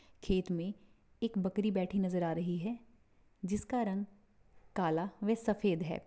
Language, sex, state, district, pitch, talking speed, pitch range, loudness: Hindi, female, Maharashtra, Pune, 195 Hz, 150 wpm, 180-210 Hz, -36 LUFS